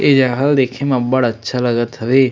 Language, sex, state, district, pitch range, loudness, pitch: Chhattisgarhi, male, Chhattisgarh, Sarguja, 120-135 Hz, -16 LUFS, 130 Hz